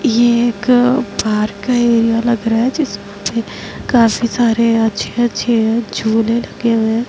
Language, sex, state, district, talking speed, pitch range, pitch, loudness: Hindi, female, Bihar, Madhepura, 135 wpm, 225-240 Hz, 230 Hz, -15 LUFS